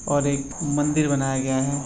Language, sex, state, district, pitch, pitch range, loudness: Hindi, male, Bihar, Purnia, 140 Hz, 135-145 Hz, -23 LUFS